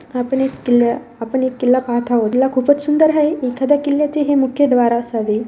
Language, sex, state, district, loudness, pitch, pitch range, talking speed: Marathi, female, Maharashtra, Dhule, -16 LUFS, 260 Hz, 240-285 Hz, 195 wpm